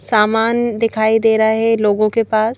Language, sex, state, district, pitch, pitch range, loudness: Hindi, female, Madhya Pradesh, Bhopal, 225 Hz, 215-230 Hz, -15 LUFS